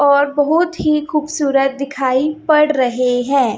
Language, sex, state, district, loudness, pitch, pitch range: Hindi, female, Chhattisgarh, Raipur, -16 LUFS, 285 Hz, 265-300 Hz